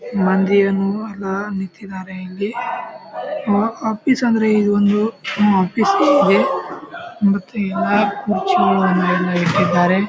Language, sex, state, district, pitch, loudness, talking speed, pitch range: Kannada, male, Karnataka, Bijapur, 200 Hz, -17 LUFS, 105 wpm, 190-220 Hz